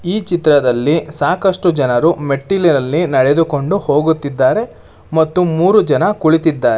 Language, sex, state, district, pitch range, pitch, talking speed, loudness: Kannada, male, Karnataka, Bangalore, 145-180 Hz, 160 Hz, 95 wpm, -14 LUFS